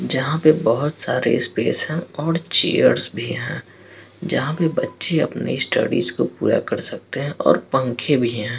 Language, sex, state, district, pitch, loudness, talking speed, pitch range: Hindi, male, Bihar, Patna, 145 Hz, -19 LUFS, 170 wpm, 125-160 Hz